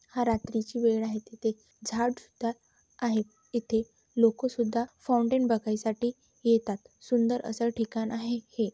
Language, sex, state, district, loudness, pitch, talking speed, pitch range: Marathi, female, Maharashtra, Chandrapur, -30 LUFS, 230 Hz, 150 wpm, 220-240 Hz